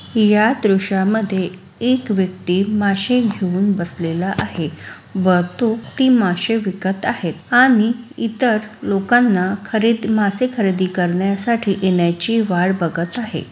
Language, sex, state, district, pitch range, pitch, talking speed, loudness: Marathi, female, Maharashtra, Sindhudurg, 185-230 Hz, 200 Hz, 110 wpm, -18 LUFS